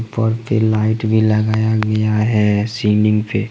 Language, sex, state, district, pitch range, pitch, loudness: Hindi, male, Jharkhand, Ranchi, 105-110 Hz, 110 Hz, -16 LUFS